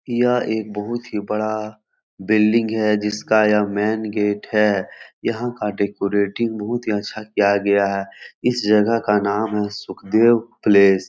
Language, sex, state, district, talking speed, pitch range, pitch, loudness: Hindi, male, Bihar, Jahanabad, 155 wpm, 105-110 Hz, 105 Hz, -20 LUFS